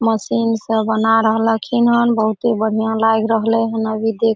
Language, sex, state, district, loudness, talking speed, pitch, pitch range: Maithili, female, Bihar, Samastipur, -16 LUFS, 165 wpm, 225 Hz, 220-225 Hz